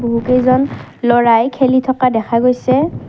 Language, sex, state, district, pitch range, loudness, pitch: Assamese, female, Assam, Kamrup Metropolitan, 235-260 Hz, -14 LUFS, 250 Hz